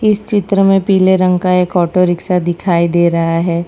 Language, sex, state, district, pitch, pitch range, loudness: Hindi, female, Gujarat, Valsad, 180 Hz, 170-195 Hz, -13 LUFS